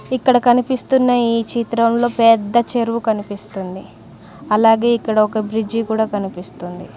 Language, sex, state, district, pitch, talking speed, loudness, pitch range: Telugu, female, Telangana, Mahabubabad, 230 Hz, 110 wpm, -17 LUFS, 215-240 Hz